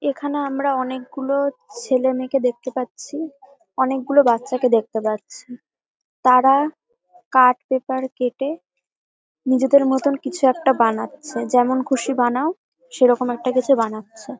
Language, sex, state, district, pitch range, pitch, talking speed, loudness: Bengali, female, West Bengal, Dakshin Dinajpur, 250-280 Hz, 260 Hz, 120 wpm, -20 LUFS